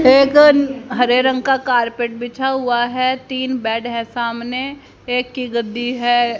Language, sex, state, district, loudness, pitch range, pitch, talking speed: Hindi, female, Haryana, Rohtak, -17 LUFS, 240-265 Hz, 250 Hz, 160 wpm